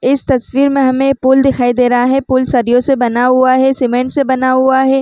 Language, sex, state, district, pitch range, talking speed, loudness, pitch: Chhattisgarhi, female, Chhattisgarh, Raigarh, 250-270 Hz, 225 wpm, -12 LUFS, 260 Hz